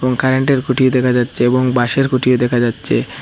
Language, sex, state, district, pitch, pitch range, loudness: Bengali, male, Assam, Hailakandi, 125 Hz, 125-130 Hz, -15 LUFS